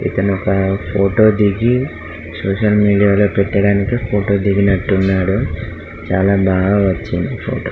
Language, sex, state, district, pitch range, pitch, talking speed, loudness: Telugu, male, Telangana, Karimnagar, 95-100 Hz, 100 Hz, 130 wpm, -15 LUFS